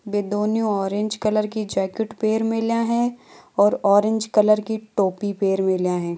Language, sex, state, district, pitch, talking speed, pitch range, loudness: Marwari, female, Rajasthan, Nagaur, 210 Hz, 175 wpm, 200-220 Hz, -21 LUFS